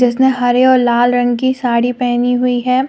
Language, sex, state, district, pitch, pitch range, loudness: Hindi, female, Jharkhand, Deoghar, 245 Hz, 245-255 Hz, -13 LUFS